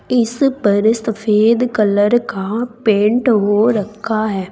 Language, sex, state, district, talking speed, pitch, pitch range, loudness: Hindi, female, Uttar Pradesh, Saharanpur, 120 wpm, 220 Hz, 210-235 Hz, -15 LUFS